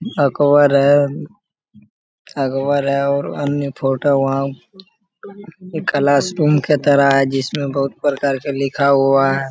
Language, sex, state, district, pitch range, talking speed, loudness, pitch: Hindi, male, Bihar, Jamui, 135-150 Hz, 130 wpm, -16 LUFS, 140 Hz